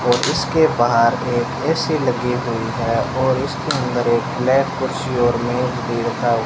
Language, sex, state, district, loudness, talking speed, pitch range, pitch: Hindi, male, Rajasthan, Bikaner, -19 LUFS, 175 wpm, 120-135 Hz, 125 Hz